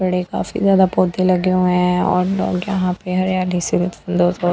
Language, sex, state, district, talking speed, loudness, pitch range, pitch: Hindi, female, Delhi, New Delhi, 170 wpm, -17 LUFS, 180-185 Hz, 180 Hz